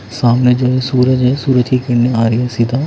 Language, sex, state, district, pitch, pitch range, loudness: Hindi, male, Odisha, Khordha, 125 Hz, 120-130 Hz, -13 LUFS